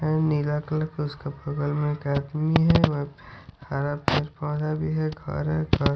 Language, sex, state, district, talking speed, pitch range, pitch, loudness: Hindi, male, Odisha, Sambalpur, 160 wpm, 140-155 Hz, 145 Hz, -26 LUFS